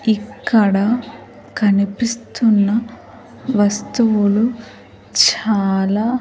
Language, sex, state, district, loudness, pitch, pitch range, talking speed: Telugu, female, Andhra Pradesh, Sri Satya Sai, -17 LUFS, 215 Hz, 200-230 Hz, 40 wpm